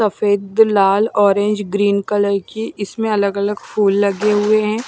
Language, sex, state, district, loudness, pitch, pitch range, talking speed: Hindi, female, Maharashtra, Washim, -16 LUFS, 205 Hz, 200-215 Hz, 160 wpm